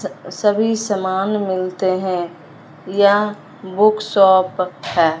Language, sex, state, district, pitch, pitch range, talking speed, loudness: Hindi, male, Punjab, Fazilka, 190 Hz, 185-205 Hz, 90 wpm, -17 LUFS